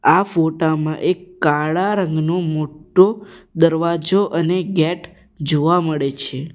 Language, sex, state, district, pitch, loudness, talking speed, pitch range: Gujarati, male, Gujarat, Valsad, 165 Hz, -18 LUFS, 120 wpm, 155-180 Hz